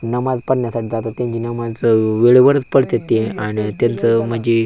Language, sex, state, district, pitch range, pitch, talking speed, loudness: Marathi, male, Maharashtra, Aurangabad, 115-120 Hz, 115 Hz, 155 wpm, -16 LUFS